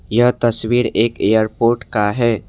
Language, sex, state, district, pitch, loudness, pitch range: Hindi, male, Assam, Kamrup Metropolitan, 115 Hz, -16 LUFS, 110-120 Hz